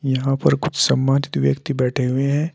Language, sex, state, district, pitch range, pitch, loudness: Hindi, male, Uttar Pradesh, Saharanpur, 125-140 Hz, 135 Hz, -19 LUFS